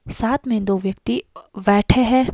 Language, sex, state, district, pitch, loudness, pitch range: Hindi, female, Himachal Pradesh, Shimla, 215 Hz, -19 LUFS, 200-255 Hz